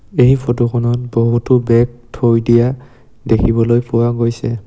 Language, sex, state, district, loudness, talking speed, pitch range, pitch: Assamese, male, Assam, Sonitpur, -14 LUFS, 115 wpm, 115-120 Hz, 120 Hz